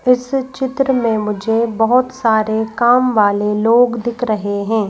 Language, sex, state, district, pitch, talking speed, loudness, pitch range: Hindi, female, Madhya Pradesh, Bhopal, 230 Hz, 145 wpm, -15 LUFS, 220-250 Hz